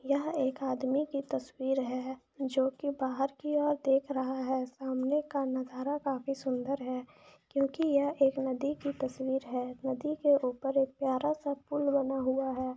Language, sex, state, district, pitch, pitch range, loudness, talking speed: Hindi, female, Jharkhand, Jamtara, 270 Hz, 260-285 Hz, -32 LUFS, 180 wpm